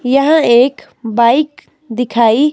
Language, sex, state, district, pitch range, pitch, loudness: Hindi, female, Himachal Pradesh, Shimla, 235-295 Hz, 245 Hz, -12 LUFS